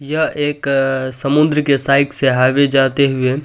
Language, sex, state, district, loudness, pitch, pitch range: Hindi, male, Bihar, Supaul, -15 LUFS, 140 Hz, 135-145 Hz